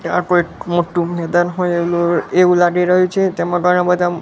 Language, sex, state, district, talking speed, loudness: Gujarati, male, Gujarat, Gandhinagar, 185 wpm, -15 LUFS